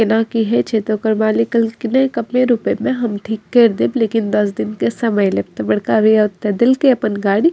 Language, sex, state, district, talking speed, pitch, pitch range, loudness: Maithili, female, Bihar, Madhepura, 240 wpm, 220 Hz, 210-235 Hz, -16 LUFS